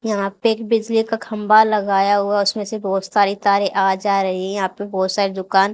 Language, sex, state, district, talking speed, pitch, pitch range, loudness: Hindi, female, Haryana, Charkhi Dadri, 250 wpm, 200 Hz, 195-215 Hz, -18 LUFS